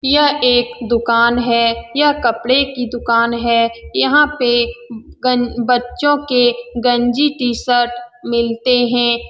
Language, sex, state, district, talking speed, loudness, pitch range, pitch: Hindi, female, Bihar, Saran, 115 wpm, -15 LUFS, 235-250 Hz, 240 Hz